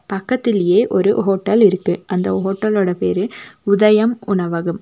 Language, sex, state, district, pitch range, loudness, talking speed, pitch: Tamil, female, Tamil Nadu, Nilgiris, 185-215 Hz, -16 LUFS, 110 wpm, 200 Hz